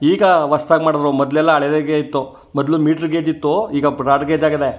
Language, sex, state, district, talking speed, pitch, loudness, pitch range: Kannada, male, Karnataka, Chamarajanagar, 175 wpm, 150 Hz, -16 LUFS, 145-160 Hz